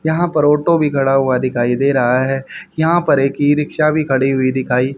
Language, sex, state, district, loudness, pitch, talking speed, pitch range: Hindi, male, Haryana, Charkhi Dadri, -15 LUFS, 135 Hz, 240 wpm, 130-155 Hz